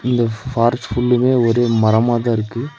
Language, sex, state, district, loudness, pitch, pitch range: Tamil, male, Tamil Nadu, Nilgiris, -16 LUFS, 120 Hz, 115-125 Hz